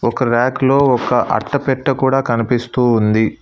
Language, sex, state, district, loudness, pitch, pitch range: Telugu, male, Telangana, Hyderabad, -15 LUFS, 125 Hz, 120-135 Hz